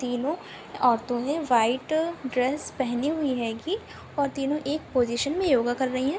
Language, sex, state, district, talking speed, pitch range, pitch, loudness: Hindi, female, Bihar, Sitamarhi, 175 wpm, 245-300 Hz, 265 Hz, -26 LUFS